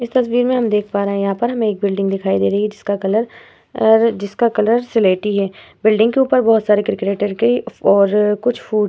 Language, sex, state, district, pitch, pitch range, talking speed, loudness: Hindi, female, Bihar, Vaishali, 210 Hz, 200-235 Hz, 235 wpm, -16 LUFS